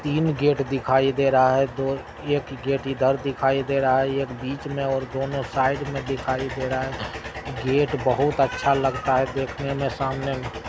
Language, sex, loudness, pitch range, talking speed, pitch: Maithili, male, -24 LUFS, 130-140 Hz, 180 wpm, 135 Hz